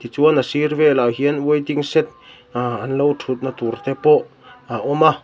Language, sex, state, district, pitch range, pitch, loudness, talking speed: Mizo, male, Mizoram, Aizawl, 125-150 Hz, 145 Hz, -18 LUFS, 185 wpm